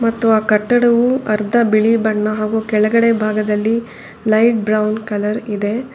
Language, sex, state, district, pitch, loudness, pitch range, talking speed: Kannada, female, Karnataka, Bangalore, 220 Hz, -16 LUFS, 215-230 Hz, 130 wpm